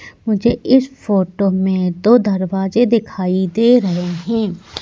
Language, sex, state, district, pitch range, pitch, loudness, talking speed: Hindi, female, Madhya Pradesh, Katni, 185-230 Hz, 200 Hz, -16 LUFS, 125 wpm